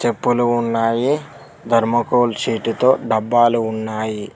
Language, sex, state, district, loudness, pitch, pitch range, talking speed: Telugu, male, Telangana, Mahabubabad, -18 LUFS, 115 Hz, 115-120 Hz, 95 wpm